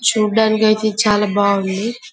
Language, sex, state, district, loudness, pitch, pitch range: Telugu, male, Telangana, Karimnagar, -16 LUFS, 215 Hz, 205-220 Hz